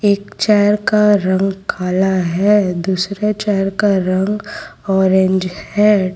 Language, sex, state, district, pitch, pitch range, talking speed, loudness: Hindi, female, Gujarat, Valsad, 195 Hz, 190-205 Hz, 115 wpm, -15 LUFS